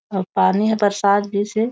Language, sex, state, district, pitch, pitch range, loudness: Chhattisgarhi, female, Chhattisgarh, Raigarh, 205 Hz, 200-215 Hz, -18 LUFS